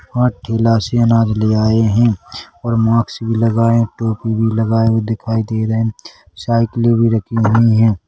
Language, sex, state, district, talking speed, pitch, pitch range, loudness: Hindi, male, Chhattisgarh, Korba, 180 wpm, 115 Hz, 110-115 Hz, -15 LUFS